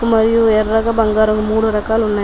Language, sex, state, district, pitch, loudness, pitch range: Telugu, female, Telangana, Nalgonda, 220 Hz, -14 LUFS, 215-225 Hz